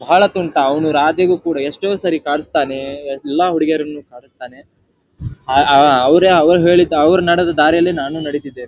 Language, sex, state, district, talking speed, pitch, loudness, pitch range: Kannada, male, Karnataka, Dharwad, 150 wpm, 155 Hz, -14 LUFS, 145-175 Hz